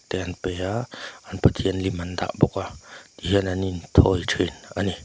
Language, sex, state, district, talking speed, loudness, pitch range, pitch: Mizo, male, Mizoram, Aizawl, 200 wpm, -24 LUFS, 90-95 Hz, 95 Hz